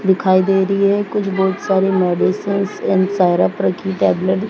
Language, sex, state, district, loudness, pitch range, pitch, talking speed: Hindi, female, Maharashtra, Gondia, -16 LUFS, 190-200 Hz, 190 Hz, 135 wpm